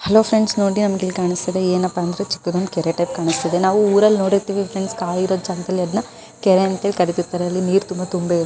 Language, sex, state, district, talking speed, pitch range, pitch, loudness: Kannada, female, Karnataka, Gulbarga, 170 wpm, 180-200 Hz, 185 Hz, -19 LUFS